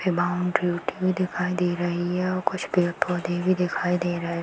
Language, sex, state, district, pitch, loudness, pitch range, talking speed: Hindi, female, Bihar, Darbhanga, 180 Hz, -25 LUFS, 175-185 Hz, 205 wpm